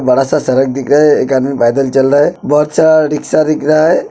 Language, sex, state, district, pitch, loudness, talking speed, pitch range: Hindi, male, Uttar Pradesh, Hamirpur, 145 Hz, -11 LUFS, 260 wpm, 135-150 Hz